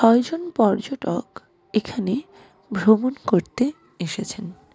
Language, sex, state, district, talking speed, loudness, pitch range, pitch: Bengali, female, West Bengal, Darjeeling, 75 wpm, -23 LUFS, 200-270 Hz, 220 Hz